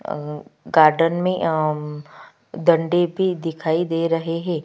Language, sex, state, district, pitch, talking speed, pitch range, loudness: Hindi, female, Chhattisgarh, Kabirdham, 165 Hz, 130 wpm, 155-175 Hz, -20 LUFS